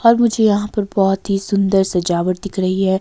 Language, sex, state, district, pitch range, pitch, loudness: Hindi, female, Himachal Pradesh, Shimla, 190-210 Hz, 195 Hz, -17 LUFS